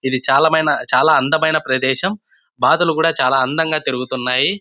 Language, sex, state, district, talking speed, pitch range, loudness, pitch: Telugu, male, Andhra Pradesh, Anantapur, 145 wpm, 130-160 Hz, -16 LUFS, 135 Hz